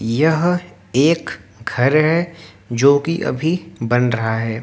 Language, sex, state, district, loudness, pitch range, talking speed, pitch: Hindi, male, Haryana, Jhajjar, -18 LUFS, 115-165 Hz, 115 wpm, 140 Hz